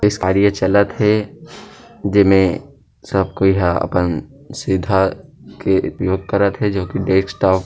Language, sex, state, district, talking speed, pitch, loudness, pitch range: Chhattisgarhi, male, Chhattisgarh, Rajnandgaon, 140 wpm, 95 Hz, -17 LUFS, 95-105 Hz